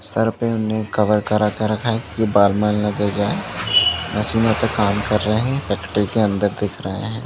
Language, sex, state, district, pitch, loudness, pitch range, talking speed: Hindi, male, Chhattisgarh, Bastar, 105 Hz, -19 LUFS, 100-110 Hz, 215 wpm